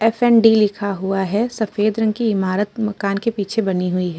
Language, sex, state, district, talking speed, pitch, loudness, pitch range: Hindi, female, Uttar Pradesh, Muzaffarnagar, 200 wpm, 210 Hz, -18 LUFS, 195-225 Hz